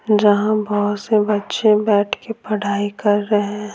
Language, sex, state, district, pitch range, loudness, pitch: Hindi, female, Bihar, Patna, 205-215 Hz, -18 LUFS, 210 Hz